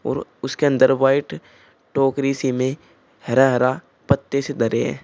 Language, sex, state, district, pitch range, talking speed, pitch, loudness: Hindi, male, Uttar Pradesh, Shamli, 130-140 Hz, 155 wpm, 135 Hz, -20 LUFS